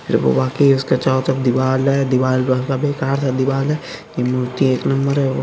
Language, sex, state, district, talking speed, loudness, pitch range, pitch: Hindi, male, Bihar, Araria, 200 wpm, -17 LUFS, 130-140 Hz, 135 Hz